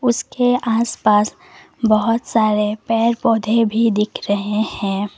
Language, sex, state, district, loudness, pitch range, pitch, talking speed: Hindi, female, Assam, Kamrup Metropolitan, -18 LUFS, 210-230 Hz, 225 Hz, 125 wpm